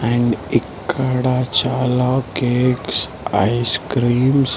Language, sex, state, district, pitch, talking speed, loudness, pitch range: Telugu, male, Andhra Pradesh, Sri Satya Sai, 125 Hz, 90 wpm, -17 LUFS, 120-130 Hz